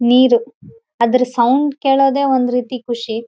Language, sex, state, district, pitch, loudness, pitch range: Kannada, female, Karnataka, Raichur, 250 Hz, -15 LUFS, 235-265 Hz